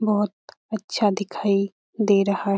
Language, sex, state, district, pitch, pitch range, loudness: Hindi, female, Bihar, Lakhisarai, 200 Hz, 195-210 Hz, -23 LUFS